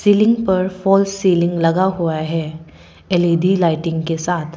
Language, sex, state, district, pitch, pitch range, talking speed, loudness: Hindi, female, Arunachal Pradesh, Papum Pare, 175 Hz, 165-190 Hz, 145 wpm, -17 LUFS